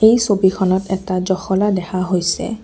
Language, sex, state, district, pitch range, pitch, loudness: Assamese, female, Assam, Kamrup Metropolitan, 185-205 Hz, 190 Hz, -17 LUFS